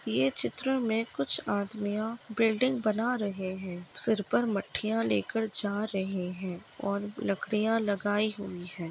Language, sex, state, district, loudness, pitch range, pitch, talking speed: Hindi, female, Maharashtra, Dhule, -31 LUFS, 190-225 Hz, 205 Hz, 140 wpm